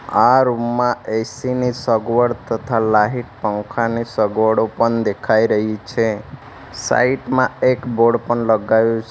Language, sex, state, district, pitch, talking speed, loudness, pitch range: Gujarati, male, Gujarat, Valsad, 115 Hz, 140 wpm, -17 LUFS, 110-120 Hz